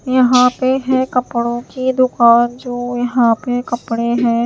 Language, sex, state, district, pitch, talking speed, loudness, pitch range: Hindi, female, Himachal Pradesh, Shimla, 245 Hz, 150 wpm, -15 LUFS, 235-255 Hz